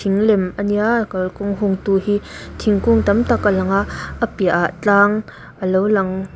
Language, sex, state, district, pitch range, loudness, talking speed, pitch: Mizo, female, Mizoram, Aizawl, 190-210 Hz, -18 LUFS, 190 wpm, 200 Hz